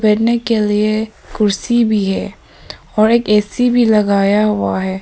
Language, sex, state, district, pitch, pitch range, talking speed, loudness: Hindi, female, Arunachal Pradesh, Papum Pare, 215 Hz, 205-230 Hz, 155 wpm, -14 LUFS